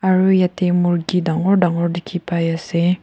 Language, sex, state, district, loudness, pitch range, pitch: Nagamese, female, Nagaland, Kohima, -18 LUFS, 170-185 Hz, 175 Hz